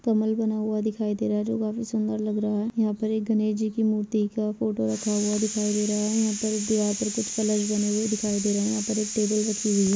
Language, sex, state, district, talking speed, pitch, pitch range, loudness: Hindi, female, Bihar, Jahanabad, 285 wpm, 215 Hz, 210-220 Hz, -25 LUFS